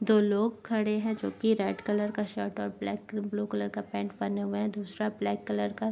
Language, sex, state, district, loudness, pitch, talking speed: Hindi, female, Maharashtra, Dhule, -31 LUFS, 205 Hz, 235 wpm